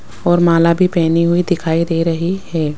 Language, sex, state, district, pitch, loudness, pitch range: Hindi, female, Rajasthan, Jaipur, 170 Hz, -15 LUFS, 165-175 Hz